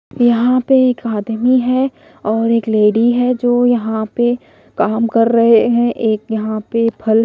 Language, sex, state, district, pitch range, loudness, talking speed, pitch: Hindi, female, Odisha, Malkangiri, 220-245 Hz, -14 LUFS, 165 wpm, 230 Hz